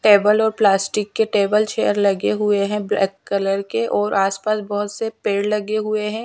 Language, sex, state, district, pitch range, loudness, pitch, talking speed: Hindi, female, Chhattisgarh, Raipur, 200-215 Hz, -19 LUFS, 210 Hz, 200 wpm